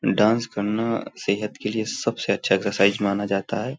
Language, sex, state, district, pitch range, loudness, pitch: Hindi, male, Uttar Pradesh, Hamirpur, 100-115 Hz, -23 LUFS, 105 Hz